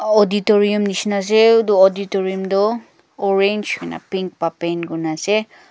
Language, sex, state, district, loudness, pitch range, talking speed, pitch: Nagamese, female, Nagaland, Kohima, -17 LUFS, 185-210 Hz, 135 wpm, 200 Hz